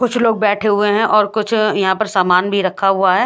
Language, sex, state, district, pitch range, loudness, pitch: Hindi, female, Odisha, Khordha, 195-215 Hz, -15 LUFS, 210 Hz